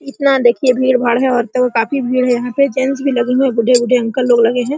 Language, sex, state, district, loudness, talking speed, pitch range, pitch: Hindi, female, Bihar, Araria, -14 LUFS, 250 wpm, 245-265 Hz, 255 Hz